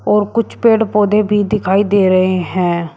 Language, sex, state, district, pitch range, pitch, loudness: Hindi, male, Uttar Pradesh, Shamli, 185-210 Hz, 205 Hz, -14 LUFS